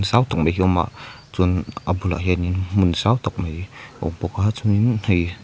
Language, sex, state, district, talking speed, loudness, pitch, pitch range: Mizo, male, Mizoram, Aizawl, 255 wpm, -21 LUFS, 95 Hz, 90-110 Hz